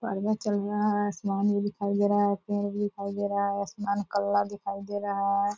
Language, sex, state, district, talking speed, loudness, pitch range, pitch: Hindi, female, Bihar, Purnia, 225 wpm, -28 LUFS, 200-205 Hz, 205 Hz